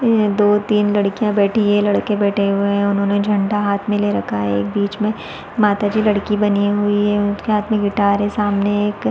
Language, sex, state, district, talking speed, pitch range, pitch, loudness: Hindi, female, Chhattisgarh, Balrampur, 230 wpm, 200-210 Hz, 205 Hz, -17 LUFS